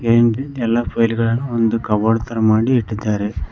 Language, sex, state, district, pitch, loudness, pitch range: Kannada, male, Karnataka, Koppal, 115 Hz, -18 LUFS, 110-120 Hz